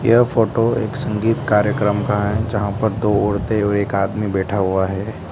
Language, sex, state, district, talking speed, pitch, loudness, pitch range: Hindi, male, Mizoram, Aizawl, 190 wpm, 105 Hz, -18 LUFS, 100-110 Hz